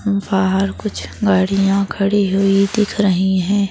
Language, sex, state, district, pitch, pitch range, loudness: Hindi, female, Madhya Pradesh, Bhopal, 195 Hz, 190-205 Hz, -16 LUFS